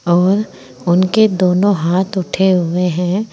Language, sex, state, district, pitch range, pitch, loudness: Hindi, female, Uttar Pradesh, Saharanpur, 175-190 Hz, 185 Hz, -15 LUFS